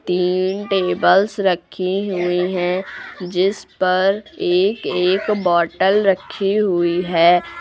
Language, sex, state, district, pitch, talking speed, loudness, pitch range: Hindi, female, Uttar Pradesh, Lucknow, 185 Hz, 105 wpm, -18 LUFS, 180-195 Hz